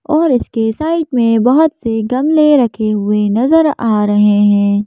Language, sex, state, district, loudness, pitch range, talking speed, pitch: Hindi, female, Madhya Pradesh, Bhopal, -12 LUFS, 210-300 Hz, 160 wpm, 235 Hz